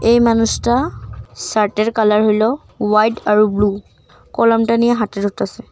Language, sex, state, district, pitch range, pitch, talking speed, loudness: Bengali, female, Assam, Kamrup Metropolitan, 210-230 Hz, 220 Hz, 135 wpm, -16 LUFS